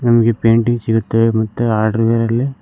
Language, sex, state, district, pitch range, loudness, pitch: Kannada, male, Karnataka, Koppal, 115-120 Hz, -15 LUFS, 115 Hz